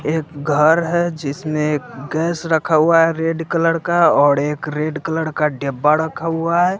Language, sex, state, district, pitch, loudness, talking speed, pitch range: Hindi, male, Bihar, West Champaran, 160 Hz, -17 LUFS, 175 wpm, 150-165 Hz